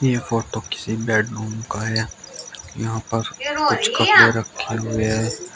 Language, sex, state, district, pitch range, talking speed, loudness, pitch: Hindi, male, Uttar Pradesh, Shamli, 110-115 Hz, 140 wpm, -20 LUFS, 110 Hz